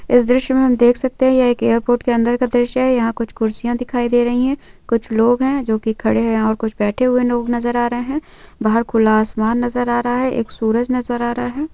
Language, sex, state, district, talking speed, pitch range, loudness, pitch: Hindi, female, West Bengal, North 24 Parganas, 260 wpm, 230-250 Hz, -17 LUFS, 240 Hz